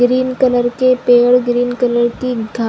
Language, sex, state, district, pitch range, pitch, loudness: Hindi, female, Chhattisgarh, Bilaspur, 240-255 Hz, 245 Hz, -14 LUFS